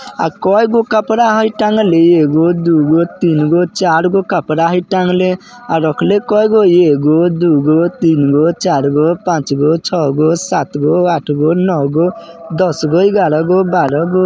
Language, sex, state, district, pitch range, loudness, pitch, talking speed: Bajjika, male, Bihar, Vaishali, 155-185 Hz, -12 LUFS, 170 Hz, 120 wpm